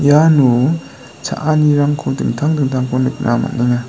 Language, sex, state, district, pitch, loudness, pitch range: Garo, male, Meghalaya, West Garo Hills, 135 Hz, -15 LUFS, 125-150 Hz